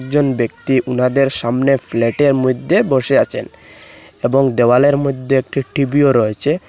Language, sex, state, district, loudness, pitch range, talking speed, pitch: Bengali, male, Assam, Hailakandi, -15 LUFS, 125-140 Hz, 125 wpm, 135 Hz